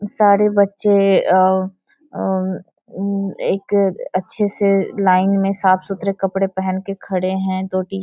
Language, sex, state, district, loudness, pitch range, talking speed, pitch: Hindi, female, Jharkhand, Sahebganj, -18 LUFS, 185-200 Hz, 135 wpm, 195 Hz